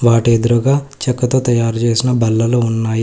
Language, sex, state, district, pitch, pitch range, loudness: Telugu, male, Telangana, Hyderabad, 120 Hz, 115-125 Hz, -15 LUFS